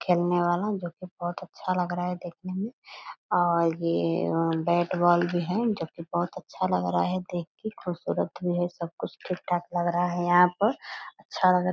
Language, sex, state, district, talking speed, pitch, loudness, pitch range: Hindi, female, Bihar, Purnia, 210 wpm, 175 Hz, -27 LUFS, 170-185 Hz